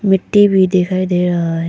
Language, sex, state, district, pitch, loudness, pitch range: Hindi, female, Arunachal Pradesh, Papum Pare, 185 Hz, -13 LUFS, 175-190 Hz